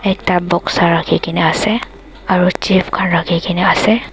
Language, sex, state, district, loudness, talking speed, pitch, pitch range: Nagamese, female, Nagaland, Dimapur, -14 LUFS, 130 wpm, 180 Hz, 175-190 Hz